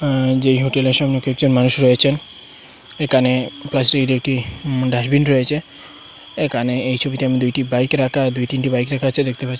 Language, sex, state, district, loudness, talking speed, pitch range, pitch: Bengali, male, Assam, Hailakandi, -17 LUFS, 160 wpm, 125-140 Hz, 130 Hz